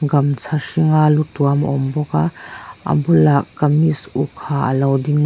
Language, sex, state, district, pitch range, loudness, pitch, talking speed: Mizo, female, Mizoram, Aizawl, 140-150 Hz, -17 LUFS, 145 Hz, 180 wpm